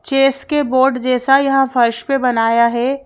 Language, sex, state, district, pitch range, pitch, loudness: Hindi, female, Madhya Pradesh, Bhopal, 245-275 Hz, 265 Hz, -15 LUFS